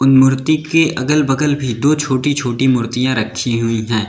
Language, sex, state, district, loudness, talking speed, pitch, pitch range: Hindi, male, Uttar Pradesh, Lalitpur, -15 LUFS, 175 wpm, 130 Hz, 120-145 Hz